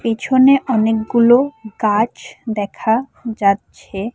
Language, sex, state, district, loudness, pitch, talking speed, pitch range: Bengali, female, Assam, Hailakandi, -16 LUFS, 225 Hz, 70 wpm, 215-245 Hz